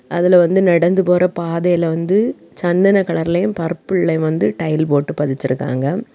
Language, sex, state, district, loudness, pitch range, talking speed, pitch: Tamil, female, Tamil Nadu, Kanyakumari, -16 LUFS, 160-180 Hz, 125 wpm, 170 Hz